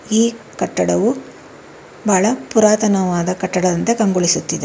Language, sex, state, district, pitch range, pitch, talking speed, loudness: Kannada, female, Karnataka, Bangalore, 180-220 Hz, 200 Hz, 75 wpm, -17 LUFS